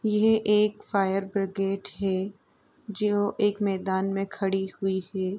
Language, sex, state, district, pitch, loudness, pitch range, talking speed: Hindi, female, Uttar Pradesh, Etah, 195 Hz, -27 LUFS, 195-210 Hz, 135 wpm